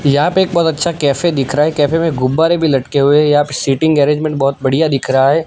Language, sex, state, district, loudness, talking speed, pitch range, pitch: Hindi, male, Gujarat, Gandhinagar, -13 LUFS, 275 wpm, 140-160 Hz, 145 Hz